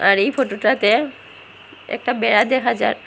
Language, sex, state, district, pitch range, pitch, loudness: Bengali, female, Assam, Hailakandi, 210-260 Hz, 230 Hz, -17 LUFS